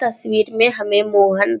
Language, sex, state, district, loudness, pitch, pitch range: Hindi, male, Bihar, Jamui, -16 LUFS, 215 Hz, 205-235 Hz